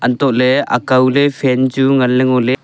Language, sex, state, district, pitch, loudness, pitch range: Wancho, male, Arunachal Pradesh, Longding, 130 Hz, -13 LUFS, 125-135 Hz